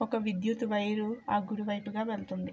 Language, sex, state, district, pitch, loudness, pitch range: Telugu, female, Andhra Pradesh, Krishna, 210 Hz, -33 LUFS, 205-220 Hz